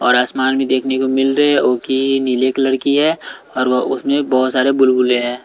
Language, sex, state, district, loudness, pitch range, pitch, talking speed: Hindi, male, Delhi, New Delhi, -15 LUFS, 125-135 Hz, 130 Hz, 220 wpm